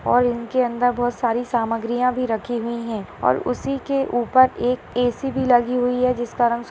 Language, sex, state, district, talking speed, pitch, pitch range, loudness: Hindi, female, Bihar, Madhepura, 205 wpm, 245 Hz, 235-250 Hz, -21 LUFS